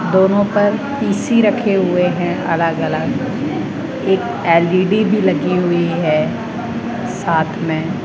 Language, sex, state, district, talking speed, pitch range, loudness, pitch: Hindi, male, Rajasthan, Jaipur, 110 wpm, 175-205 Hz, -16 LUFS, 190 Hz